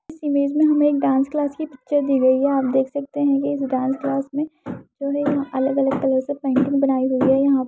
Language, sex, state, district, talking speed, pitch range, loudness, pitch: Hindi, female, Uttar Pradesh, Ghazipur, 260 wpm, 265-285 Hz, -20 LUFS, 275 Hz